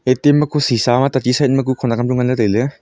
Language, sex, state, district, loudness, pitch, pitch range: Wancho, male, Arunachal Pradesh, Longding, -15 LUFS, 130 Hz, 120-135 Hz